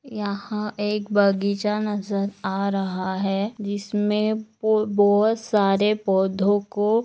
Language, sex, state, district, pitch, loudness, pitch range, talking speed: Hindi, female, Maharashtra, Nagpur, 205 Hz, -23 LUFS, 200-210 Hz, 100 wpm